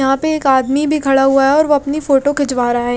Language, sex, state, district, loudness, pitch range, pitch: Hindi, female, Odisha, Khordha, -14 LUFS, 270-290 Hz, 275 Hz